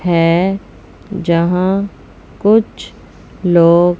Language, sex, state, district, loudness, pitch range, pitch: Hindi, female, Chandigarh, Chandigarh, -14 LUFS, 170-195 Hz, 180 Hz